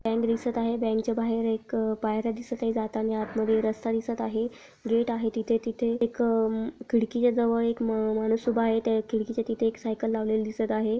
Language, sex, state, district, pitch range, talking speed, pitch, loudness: Marathi, female, Maharashtra, Pune, 220-230 Hz, 195 wpm, 225 Hz, -27 LUFS